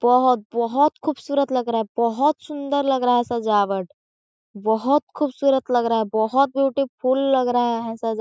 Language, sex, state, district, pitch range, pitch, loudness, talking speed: Hindi, female, Chhattisgarh, Korba, 225-275 Hz, 245 Hz, -21 LUFS, 170 wpm